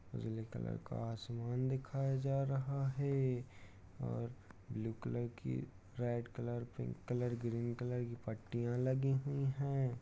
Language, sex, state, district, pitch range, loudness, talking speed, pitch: Hindi, male, Uttar Pradesh, Jyotiba Phule Nagar, 110-130 Hz, -40 LUFS, 140 wpm, 120 Hz